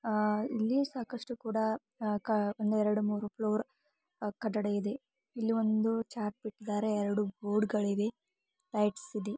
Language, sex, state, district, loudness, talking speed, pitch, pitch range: Kannada, female, Karnataka, Belgaum, -33 LUFS, 135 wpm, 215 Hz, 210-235 Hz